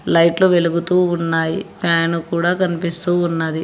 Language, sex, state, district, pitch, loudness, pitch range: Telugu, male, Telangana, Hyderabad, 170 Hz, -17 LUFS, 165-175 Hz